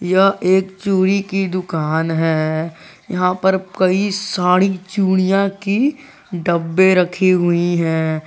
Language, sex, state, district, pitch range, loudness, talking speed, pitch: Hindi, male, Jharkhand, Garhwa, 170-195 Hz, -17 LUFS, 115 wpm, 185 Hz